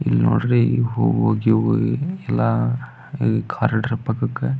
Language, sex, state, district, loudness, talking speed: Kannada, male, Karnataka, Belgaum, -20 LUFS, 105 wpm